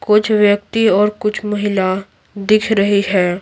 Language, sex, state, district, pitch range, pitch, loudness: Hindi, female, Bihar, Patna, 200-215 Hz, 205 Hz, -15 LUFS